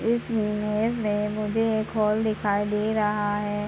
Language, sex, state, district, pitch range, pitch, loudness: Hindi, male, Bihar, Purnia, 210-220 Hz, 210 Hz, -25 LUFS